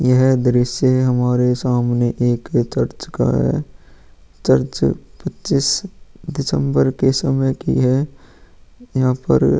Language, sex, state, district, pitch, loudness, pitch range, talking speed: Hindi, male, Bihar, Vaishali, 125 Hz, -18 LUFS, 120-130 Hz, 110 wpm